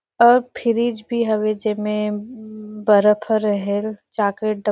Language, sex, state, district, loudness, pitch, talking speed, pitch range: Surgujia, female, Chhattisgarh, Sarguja, -19 LUFS, 215 Hz, 140 wpm, 210-225 Hz